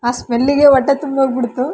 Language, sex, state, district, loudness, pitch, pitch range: Kannada, female, Karnataka, Raichur, -14 LUFS, 265 Hz, 250-280 Hz